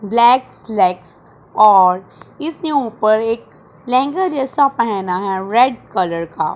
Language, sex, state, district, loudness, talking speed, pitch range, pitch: Hindi, male, Punjab, Pathankot, -16 LUFS, 120 wpm, 190-260 Hz, 225 Hz